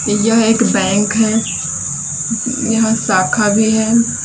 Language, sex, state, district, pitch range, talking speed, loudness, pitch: Hindi, female, Uttar Pradesh, Lalitpur, 200-225 Hz, 115 wpm, -14 LUFS, 220 Hz